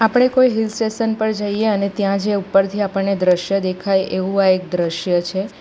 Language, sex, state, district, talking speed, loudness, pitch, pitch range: Gujarati, female, Gujarat, Valsad, 195 wpm, -18 LUFS, 195 Hz, 190-215 Hz